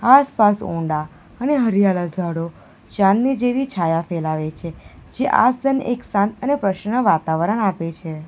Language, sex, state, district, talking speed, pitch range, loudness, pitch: Gujarati, female, Gujarat, Valsad, 140 wpm, 165-245 Hz, -19 LUFS, 195 Hz